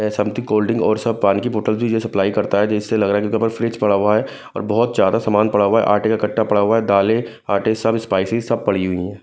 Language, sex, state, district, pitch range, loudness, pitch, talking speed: Hindi, male, Punjab, Kapurthala, 100-115 Hz, -18 LUFS, 105 Hz, 285 wpm